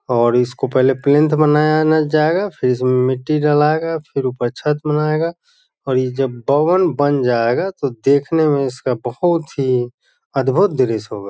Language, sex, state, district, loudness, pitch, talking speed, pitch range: Hindi, male, Bihar, Sitamarhi, -17 LUFS, 140 Hz, 160 wpm, 130-155 Hz